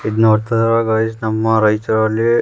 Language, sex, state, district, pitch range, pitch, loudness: Kannada, male, Karnataka, Raichur, 110-115 Hz, 110 Hz, -15 LUFS